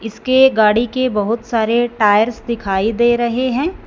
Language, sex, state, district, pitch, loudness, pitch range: Hindi, female, Punjab, Fazilka, 235 Hz, -15 LUFS, 220-250 Hz